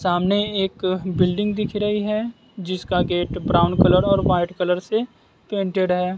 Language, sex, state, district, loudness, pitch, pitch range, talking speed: Hindi, male, Bihar, West Champaran, -21 LUFS, 185 Hz, 180-205 Hz, 155 wpm